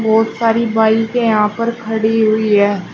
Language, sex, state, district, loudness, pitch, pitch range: Hindi, female, Uttar Pradesh, Shamli, -14 LUFS, 220 Hz, 220-225 Hz